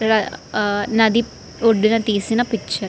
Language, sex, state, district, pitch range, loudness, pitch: Telugu, female, Andhra Pradesh, Srikakulam, 210-225 Hz, -18 LUFS, 220 Hz